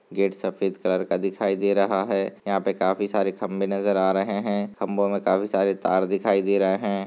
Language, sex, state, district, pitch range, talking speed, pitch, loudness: Hindi, male, Jharkhand, Sahebganj, 95-100 Hz, 220 wpm, 100 Hz, -24 LUFS